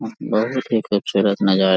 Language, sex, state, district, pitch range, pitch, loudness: Hindi, male, Jharkhand, Sahebganj, 100-110 Hz, 100 Hz, -20 LUFS